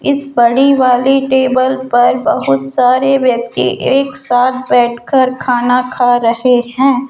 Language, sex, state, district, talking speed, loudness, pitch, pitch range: Hindi, female, Rajasthan, Jaipur, 125 wpm, -12 LUFS, 255 Hz, 245-265 Hz